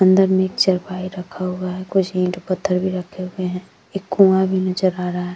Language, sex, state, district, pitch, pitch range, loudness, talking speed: Hindi, female, Uttar Pradesh, Jyotiba Phule Nagar, 185 Hz, 180-190 Hz, -20 LUFS, 225 wpm